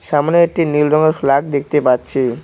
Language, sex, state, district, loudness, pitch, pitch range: Bengali, male, West Bengal, Cooch Behar, -15 LUFS, 150 Hz, 140-155 Hz